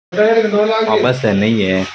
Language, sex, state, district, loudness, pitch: Rajasthani, male, Rajasthan, Churu, -14 LUFS, 130 Hz